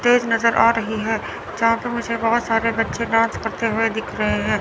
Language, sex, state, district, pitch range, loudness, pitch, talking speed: Hindi, male, Chandigarh, Chandigarh, 225-230 Hz, -20 LUFS, 230 Hz, 220 wpm